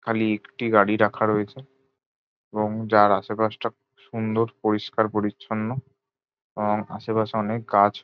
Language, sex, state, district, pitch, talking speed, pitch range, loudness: Bengali, male, West Bengal, Jhargram, 110 Hz, 120 wpm, 105-115 Hz, -24 LUFS